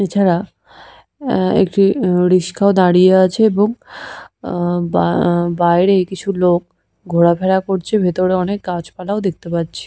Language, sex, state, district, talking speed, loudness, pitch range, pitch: Bengali, female, West Bengal, Purulia, 130 wpm, -15 LUFS, 175-195 Hz, 185 Hz